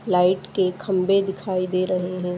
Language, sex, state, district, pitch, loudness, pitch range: Hindi, female, Goa, North and South Goa, 185 Hz, -22 LUFS, 180-190 Hz